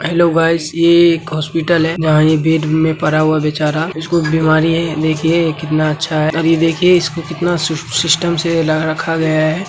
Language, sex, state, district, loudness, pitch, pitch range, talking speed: Hindi, female, Bihar, Gaya, -14 LUFS, 160 Hz, 155-165 Hz, 180 wpm